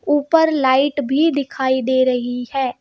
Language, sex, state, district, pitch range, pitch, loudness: Hindi, female, Madhya Pradesh, Bhopal, 260-295 Hz, 270 Hz, -17 LUFS